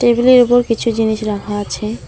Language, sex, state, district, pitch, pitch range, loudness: Bengali, female, West Bengal, Alipurduar, 230 Hz, 215-240 Hz, -14 LUFS